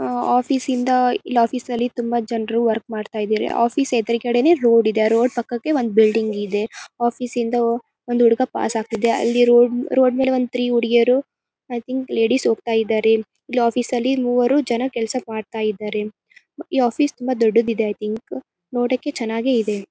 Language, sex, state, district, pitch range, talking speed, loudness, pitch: Kannada, female, Karnataka, Bellary, 225-250 Hz, 165 wpm, -19 LUFS, 235 Hz